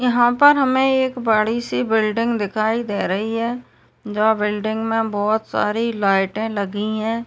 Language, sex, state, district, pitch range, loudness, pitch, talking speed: Hindi, male, Uttar Pradesh, Etah, 210-235 Hz, -19 LUFS, 220 Hz, 155 wpm